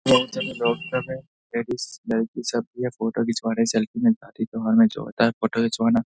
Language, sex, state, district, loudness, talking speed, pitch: Hindi, male, Bihar, Saharsa, -24 LUFS, 165 wpm, 130 Hz